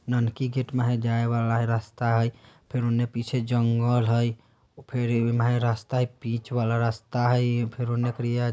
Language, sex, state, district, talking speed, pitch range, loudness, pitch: Bajjika, male, Bihar, Vaishali, 160 wpm, 115-120 Hz, -26 LUFS, 120 Hz